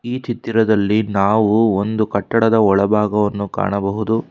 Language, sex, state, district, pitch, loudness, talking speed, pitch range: Kannada, male, Karnataka, Bangalore, 105 Hz, -17 LUFS, 95 wpm, 100-110 Hz